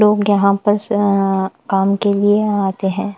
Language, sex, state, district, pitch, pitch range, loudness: Hindi, female, Bihar, West Champaran, 200 Hz, 195-205 Hz, -16 LUFS